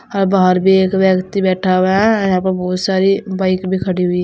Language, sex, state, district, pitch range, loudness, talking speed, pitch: Hindi, female, Uttar Pradesh, Saharanpur, 185-195 Hz, -14 LUFS, 225 wpm, 190 Hz